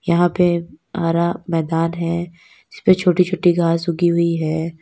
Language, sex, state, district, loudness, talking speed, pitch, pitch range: Hindi, female, Uttar Pradesh, Lalitpur, -18 LUFS, 150 wpm, 170 Hz, 165-175 Hz